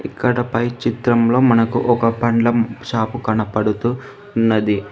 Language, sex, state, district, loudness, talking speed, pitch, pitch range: Telugu, female, Telangana, Hyderabad, -18 LUFS, 110 wpm, 115 Hz, 110-120 Hz